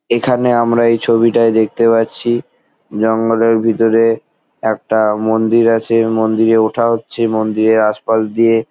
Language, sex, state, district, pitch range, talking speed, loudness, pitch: Bengali, male, West Bengal, Jalpaiguri, 110-115 Hz, 140 wpm, -13 LUFS, 115 Hz